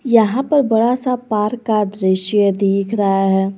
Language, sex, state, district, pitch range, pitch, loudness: Hindi, female, Jharkhand, Garhwa, 195-240 Hz, 210 Hz, -16 LUFS